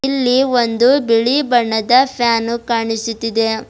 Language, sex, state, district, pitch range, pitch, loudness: Kannada, female, Karnataka, Bidar, 225-255 Hz, 235 Hz, -15 LUFS